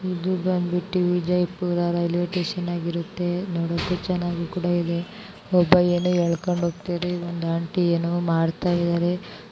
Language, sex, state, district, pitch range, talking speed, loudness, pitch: Kannada, female, Karnataka, Bijapur, 170-180 Hz, 120 wpm, -24 LUFS, 175 Hz